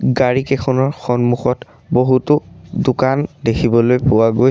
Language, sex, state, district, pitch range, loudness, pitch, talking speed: Assamese, male, Assam, Sonitpur, 120-135 Hz, -16 LUFS, 130 Hz, 95 wpm